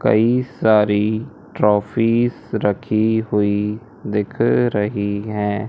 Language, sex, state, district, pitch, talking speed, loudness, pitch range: Hindi, male, Madhya Pradesh, Umaria, 105 Hz, 85 wpm, -19 LUFS, 105-110 Hz